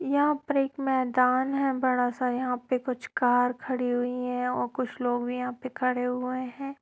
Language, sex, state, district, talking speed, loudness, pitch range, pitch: Hindi, female, Bihar, Darbhanga, 200 wpm, -28 LUFS, 250-265 Hz, 255 Hz